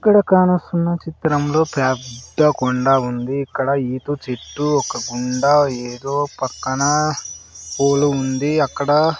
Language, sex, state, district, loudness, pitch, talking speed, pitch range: Telugu, male, Andhra Pradesh, Sri Satya Sai, -18 LUFS, 140 Hz, 105 wpm, 130-150 Hz